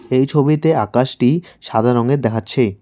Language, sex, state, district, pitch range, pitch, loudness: Bengali, male, West Bengal, Cooch Behar, 115-145 Hz, 125 Hz, -16 LUFS